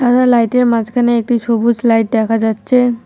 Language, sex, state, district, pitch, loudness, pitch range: Bengali, female, West Bengal, Cooch Behar, 235 Hz, -13 LUFS, 225-245 Hz